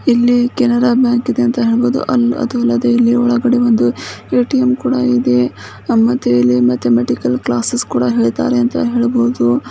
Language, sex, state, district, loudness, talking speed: Kannada, female, Karnataka, Bijapur, -14 LUFS, 125 wpm